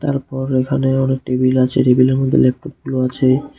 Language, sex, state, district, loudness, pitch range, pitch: Bengali, male, Tripura, West Tripura, -16 LUFS, 130-135 Hz, 130 Hz